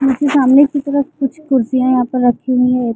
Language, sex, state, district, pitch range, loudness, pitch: Hindi, female, Chhattisgarh, Bilaspur, 250-280 Hz, -14 LUFS, 265 Hz